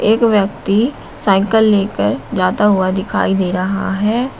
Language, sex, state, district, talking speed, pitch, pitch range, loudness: Hindi, female, Uttar Pradesh, Shamli, 135 wpm, 200 Hz, 195-220 Hz, -15 LUFS